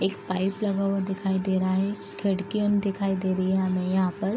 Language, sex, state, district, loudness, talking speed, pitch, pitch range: Hindi, female, Bihar, East Champaran, -26 LUFS, 235 wpm, 195 Hz, 190-195 Hz